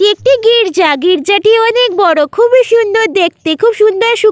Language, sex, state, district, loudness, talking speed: Bengali, female, West Bengal, Jalpaiguri, -9 LUFS, 180 wpm